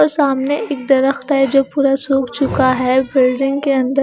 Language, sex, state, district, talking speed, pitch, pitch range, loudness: Hindi, female, Chandigarh, Chandigarh, 195 wpm, 270 Hz, 265-275 Hz, -15 LUFS